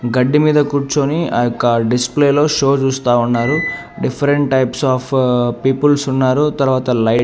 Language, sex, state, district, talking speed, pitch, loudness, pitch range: Telugu, male, Andhra Pradesh, Annamaya, 140 wpm, 130 Hz, -15 LUFS, 120-145 Hz